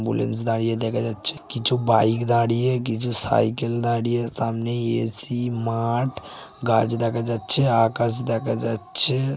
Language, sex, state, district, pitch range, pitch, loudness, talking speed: Bengali, male, West Bengal, Jhargram, 115-120 Hz, 115 Hz, -21 LUFS, 120 wpm